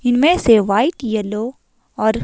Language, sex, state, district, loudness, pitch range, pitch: Hindi, female, Himachal Pradesh, Shimla, -16 LUFS, 215-260 Hz, 230 Hz